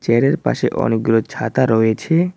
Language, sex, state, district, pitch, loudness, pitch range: Bengali, male, West Bengal, Cooch Behar, 115 Hz, -17 LUFS, 110-150 Hz